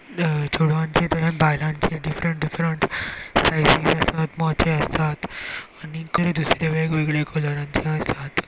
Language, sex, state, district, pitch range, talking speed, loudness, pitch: Konkani, male, Goa, North and South Goa, 155-160 Hz, 115 wpm, -22 LUFS, 160 Hz